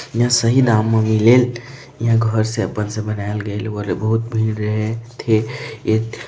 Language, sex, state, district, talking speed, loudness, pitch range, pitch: Hindi, male, Chhattisgarh, Balrampur, 170 wpm, -18 LUFS, 110-120 Hz, 110 Hz